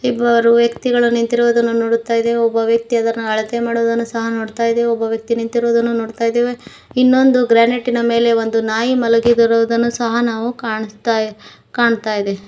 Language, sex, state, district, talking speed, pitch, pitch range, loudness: Kannada, female, Karnataka, Koppal, 145 wpm, 230 Hz, 230-235 Hz, -16 LUFS